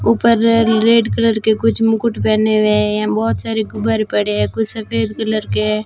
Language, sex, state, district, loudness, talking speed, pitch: Hindi, female, Rajasthan, Jaisalmer, -15 LUFS, 205 wpm, 215 Hz